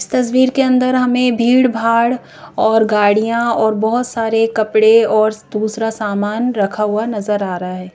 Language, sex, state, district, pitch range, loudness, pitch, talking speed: Hindi, female, Madhya Pradesh, Bhopal, 215-240 Hz, -15 LUFS, 225 Hz, 160 wpm